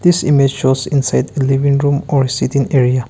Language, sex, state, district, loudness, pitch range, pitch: English, male, Nagaland, Kohima, -14 LUFS, 135-145 Hz, 140 Hz